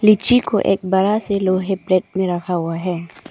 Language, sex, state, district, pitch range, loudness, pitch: Hindi, female, Arunachal Pradesh, Papum Pare, 180-200 Hz, -18 LUFS, 190 Hz